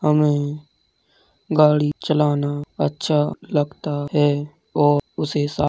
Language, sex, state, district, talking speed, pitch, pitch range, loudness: Hindi, male, Uttar Pradesh, Hamirpur, 105 wpm, 145 Hz, 145-150 Hz, -20 LUFS